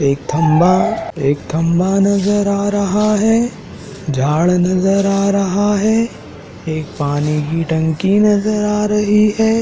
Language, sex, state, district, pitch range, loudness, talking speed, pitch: Hindi, male, Madhya Pradesh, Dhar, 160-210 Hz, -15 LUFS, 130 wpm, 195 Hz